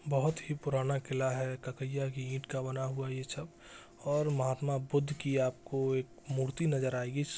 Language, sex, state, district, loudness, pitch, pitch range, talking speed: Hindi, male, Bihar, Jahanabad, -35 LUFS, 135 Hz, 130-145 Hz, 195 wpm